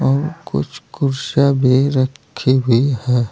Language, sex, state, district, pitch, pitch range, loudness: Hindi, male, Uttar Pradesh, Saharanpur, 130 Hz, 125-140 Hz, -17 LUFS